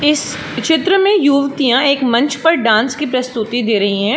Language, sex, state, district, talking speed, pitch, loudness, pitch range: Hindi, female, Uttar Pradesh, Varanasi, 185 wpm, 275 Hz, -14 LUFS, 235-295 Hz